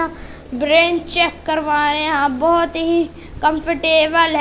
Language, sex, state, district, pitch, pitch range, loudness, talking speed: Hindi, female, Madhya Pradesh, Katni, 320 Hz, 300-335 Hz, -16 LUFS, 80 wpm